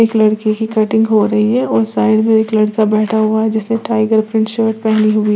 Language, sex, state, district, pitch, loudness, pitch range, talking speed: Hindi, female, Uttar Pradesh, Lalitpur, 220 Hz, -13 LUFS, 215-220 Hz, 225 wpm